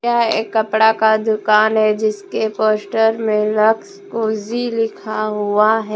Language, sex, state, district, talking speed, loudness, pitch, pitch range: Hindi, female, Jharkhand, Deoghar, 140 wpm, -17 LUFS, 220 Hz, 215-225 Hz